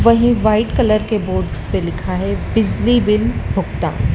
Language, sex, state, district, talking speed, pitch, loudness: Hindi, male, Madhya Pradesh, Dhar, 160 wpm, 215 Hz, -17 LUFS